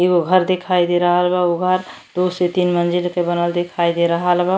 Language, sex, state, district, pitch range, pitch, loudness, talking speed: Bhojpuri, female, Uttar Pradesh, Deoria, 175-180 Hz, 175 Hz, -17 LUFS, 235 wpm